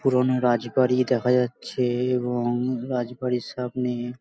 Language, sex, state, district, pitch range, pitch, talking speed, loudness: Bengali, male, West Bengal, Malda, 120-125 Hz, 125 Hz, 115 wpm, -24 LUFS